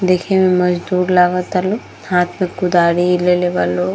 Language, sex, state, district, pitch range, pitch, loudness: Bhojpuri, female, Bihar, Gopalganj, 180-185 Hz, 180 Hz, -15 LUFS